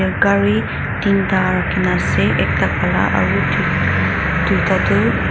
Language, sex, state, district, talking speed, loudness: Nagamese, female, Nagaland, Dimapur, 115 wpm, -16 LUFS